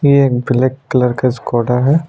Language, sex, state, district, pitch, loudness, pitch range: Hindi, male, Maharashtra, Aurangabad, 125 Hz, -14 LUFS, 125-140 Hz